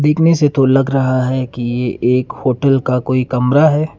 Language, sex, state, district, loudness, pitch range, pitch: Hindi, male, Karnataka, Bangalore, -14 LUFS, 125-145 Hz, 130 Hz